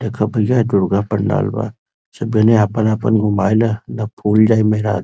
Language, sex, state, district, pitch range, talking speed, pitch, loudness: Bhojpuri, male, Uttar Pradesh, Varanasi, 105-110 Hz, 180 wpm, 110 Hz, -16 LUFS